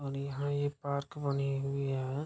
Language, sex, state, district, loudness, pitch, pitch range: Hindi, male, Bihar, Kishanganj, -35 LUFS, 140 Hz, 140-145 Hz